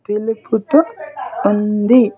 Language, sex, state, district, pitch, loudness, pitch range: Telugu, male, Andhra Pradesh, Sri Satya Sai, 220 Hz, -16 LUFS, 210-235 Hz